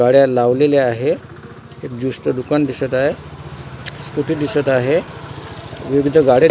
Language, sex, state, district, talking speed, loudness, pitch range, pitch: Marathi, male, Maharashtra, Washim, 140 wpm, -16 LUFS, 125-145 Hz, 135 Hz